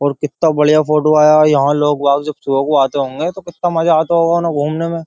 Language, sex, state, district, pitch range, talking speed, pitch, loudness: Hindi, male, Uttar Pradesh, Jyotiba Phule Nagar, 145-165 Hz, 260 wpm, 150 Hz, -14 LUFS